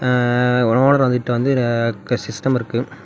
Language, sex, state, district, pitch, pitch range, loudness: Tamil, male, Tamil Nadu, Namakkal, 125 Hz, 120-130 Hz, -18 LUFS